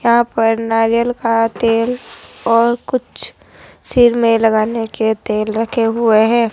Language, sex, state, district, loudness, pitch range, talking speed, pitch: Hindi, male, Rajasthan, Jaipur, -15 LUFS, 225-235 Hz, 140 wpm, 230 Hz